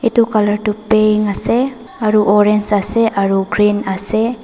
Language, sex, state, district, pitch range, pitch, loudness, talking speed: Nagamese, female, Nagaland, Dimapur, 205-225 Hz, 210 Hz, -15 LUFS, 150 wpm